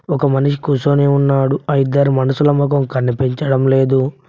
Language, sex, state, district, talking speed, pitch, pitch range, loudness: Telugu, male, Telangana, Mahabubabad, 140 wpm, 140 Hz, 135-145 Hz, -15 LUFS